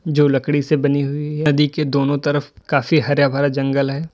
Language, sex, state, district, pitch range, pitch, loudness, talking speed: Hindi, male, Uttar Pradesh, Lalitpur, 140-150 Hz, 145 Hz, -18 LUFS, 220 wpm